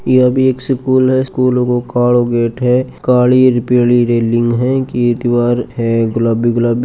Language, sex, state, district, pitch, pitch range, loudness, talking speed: Marwari, male, Rajasthan, Churu, 120 Hz, 120-130 Hz, -13 LUFS, 175 wpm